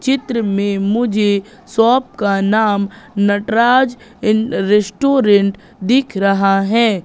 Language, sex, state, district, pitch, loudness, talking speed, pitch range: Hindi, female, Madhya Pradesh, Katni, 215 Hz, -15 LUFS, 100 wpm, 200-240 Hz